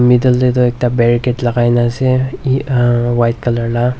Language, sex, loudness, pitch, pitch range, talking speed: Nagamese, male, -14 LUFS, 120 Hz, 120-125 Hz, 180 wpm